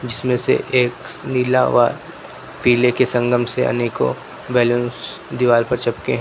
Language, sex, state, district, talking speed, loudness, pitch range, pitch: Hindi, male, Uttar Pradesh, Lucknow, 145 wpm, -18 LUFS, 120-125 Hz, 120 Hz